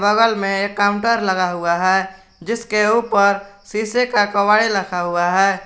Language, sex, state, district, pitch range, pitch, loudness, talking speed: Hindi, male, Jharkhand, Garhwa, 190-215 Hz, 200 Hz, -17 LUFS, 160 wpm